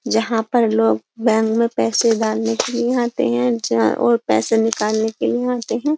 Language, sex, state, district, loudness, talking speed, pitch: Hindi, female, Uttar Pradesh, Jyotiba Phule Nagar, -18 LUFS, 190 wpm, 225 Hz